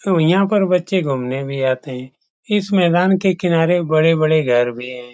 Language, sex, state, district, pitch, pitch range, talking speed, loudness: Hindi, male, Bihar, Saran, 165 Hz, 130-185 Hz, 200 wpm, -17 LUFS